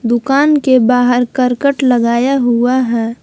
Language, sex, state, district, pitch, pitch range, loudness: Hindi, female, Jharkhand, Palamu, 250 Hz, 240-265 Hz, -12 LUFS